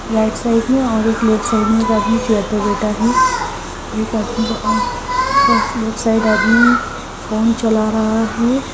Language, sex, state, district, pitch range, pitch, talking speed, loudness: Hindi, female, Haryana, Charkhi Dadri, 220-245 Hz, 225 Hz, 145 wpm, -16 LUFS